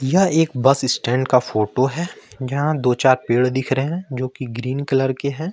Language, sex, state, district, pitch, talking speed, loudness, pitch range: Hindi, male, Jharkhand, Ranchi, 130 Hz, 215 wpm, -19 LUFS, 125-145 Hz